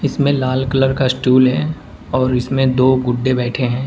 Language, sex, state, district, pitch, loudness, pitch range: Hindi, male, Uttar Pradesh, Saharanpur, 130 Hz, -16 LUFS, 125-135 Hz